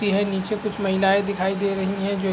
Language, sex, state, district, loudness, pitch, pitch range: Hindi, male, Bihar, Araria, -23 LUFS, 195 Hz, 195-200 Hz